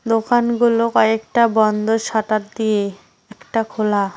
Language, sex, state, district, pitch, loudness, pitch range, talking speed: Bengali, female, West Bengal, Cooch Behar, 220 Hz, -18 LUFS, 215-230 Hz, 100 wpm